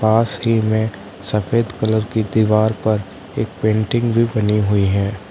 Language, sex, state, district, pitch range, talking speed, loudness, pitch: Hindi, male, Uttar Pradesh, Lalitpur, 105-110 Hz, 160 wpm, -18 LUFS, 110 Hz